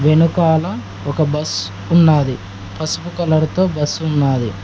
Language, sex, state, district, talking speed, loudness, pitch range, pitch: Telugu, male, Telangana, Mahabubabad, 115 wpm, -17 LUFS, 120-160 Hz, 150 Hz